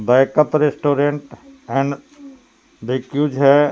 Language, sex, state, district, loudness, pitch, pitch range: Hindi, male, Jharkhand, Palamu, -17 LUFS, 145 Hz, 135-150 Hz